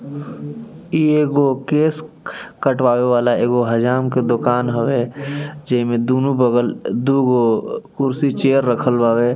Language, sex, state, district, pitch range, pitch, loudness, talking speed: Bhojpuri, male, Bihar, East Champaran, 120-140 Hz, 125 Hz, -17 LUFS, 120 wpm